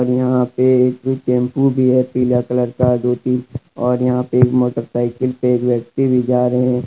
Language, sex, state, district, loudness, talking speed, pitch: Hindi, male, Jharkhand, Deoghar, -16 LUFS, 210 wpm, 125 Hz